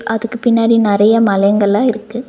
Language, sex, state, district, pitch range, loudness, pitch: Tamil, female, Tamil Nadu, Nilgiris, 205-235 Hz, -13 LUFS, 225 Hz